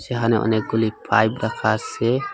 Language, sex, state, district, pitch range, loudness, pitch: Bengali, male, Assam, Hailakandi, 110-115 Hz, -21 LUFS, 110 Hz